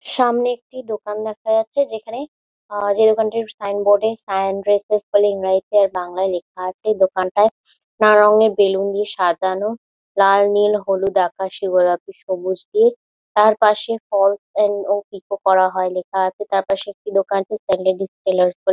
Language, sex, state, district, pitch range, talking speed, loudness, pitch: Bengali, female, West Bengal, Dakshin Dinajpur, 190-215 Hz, 150 wpm, -18 LUFS, 200 Hz